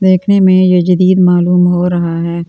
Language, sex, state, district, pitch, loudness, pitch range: Hindi, female, Delhi, New Delhi, 180 Hz, -10 LUFS, 175-185 Hz